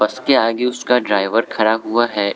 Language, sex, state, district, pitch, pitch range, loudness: Hindi, male, Arunachal Pradesh, Lower Dibang Valley, 115 Hz, 105-125 Hz, -17 LUFS